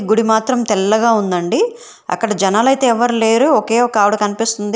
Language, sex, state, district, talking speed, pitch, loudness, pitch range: Telugu, female, Telangana, Hyderabad, 140 wpm, 225 Hz, -14 LUFS, 205-240 Hz